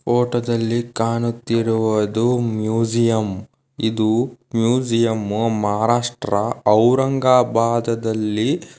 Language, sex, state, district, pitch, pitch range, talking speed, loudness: Kannada, male, Karnataka, Dharwad, 115 Hz, 110-120 Hz, 55 wpm, -19 LUFS